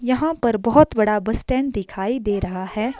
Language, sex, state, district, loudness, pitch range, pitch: Hindi, female, Himachal Pradesh, Shimla, -20 LUFS, 210-260 Hz, 230 Hz